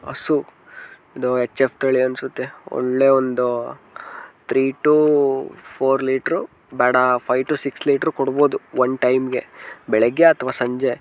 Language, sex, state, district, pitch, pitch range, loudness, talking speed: Kannada, male, Karnataka, Dharwad, 130 Hz, 125-135 Hz, -19 LUFS, 130 wpm